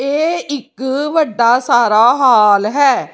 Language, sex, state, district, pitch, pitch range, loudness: Punjabi, female, Chandigarh, Chandigarh, 265 Hz, 235-285 Hz, -13 LUFS